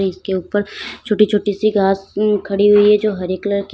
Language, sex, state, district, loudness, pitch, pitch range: Hindi, female, Uttar Pradesh, Lalitpur, -16 LUFS, 205 Hz, 195-210 Hz